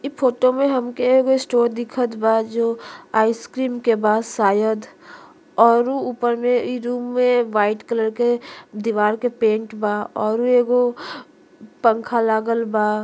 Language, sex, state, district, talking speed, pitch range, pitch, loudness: Bhojpuri, female, Uttar Pradesh, Deoria, 140 wpm, 220-250 Hz, 235 Hz, -19 LUFS